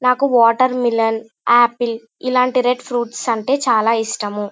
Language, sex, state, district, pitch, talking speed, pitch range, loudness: Telugu, female, Andhra Pradesh, Chittoor, 240 Hz, 135 wpm, 225-250 Hz, -17 LUFS